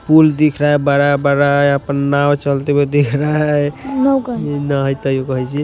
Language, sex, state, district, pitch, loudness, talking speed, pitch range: Hindi, male, Punjab, Kapurthala, 145 Hz, -15 LUFS, 160 wpm, 140-150 Hz